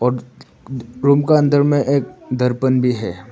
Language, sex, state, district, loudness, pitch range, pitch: Hindi, male, Arunachal Pradesh, Papum Pare, -17 LUFS, 125-140 Hz, 130 Hz